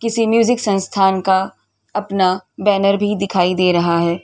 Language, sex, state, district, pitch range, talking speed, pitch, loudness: Hindi, female, Uttar Pradesh, Varanasi, 185-205 Hz, 155 wpm, 195 Hz, -16 LUFS